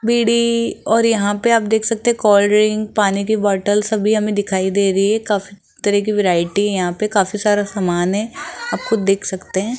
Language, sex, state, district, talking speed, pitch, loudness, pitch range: Hindi, female, Rajasthan, Jaipur, 215 wpm, 210 Hz, -17 LUFS, 200-220 Hz